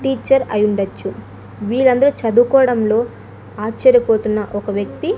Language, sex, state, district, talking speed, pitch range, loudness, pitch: Telugu, female, Andhra Pradesh, Annamaya, 80 wpm, 210-265 Hz, -16 LUFS, 230 Hz